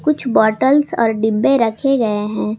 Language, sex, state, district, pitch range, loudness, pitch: Hindi, female, Jharkhand, Garhwa, 220-270 Hz, -16 LUFS, 230 Hz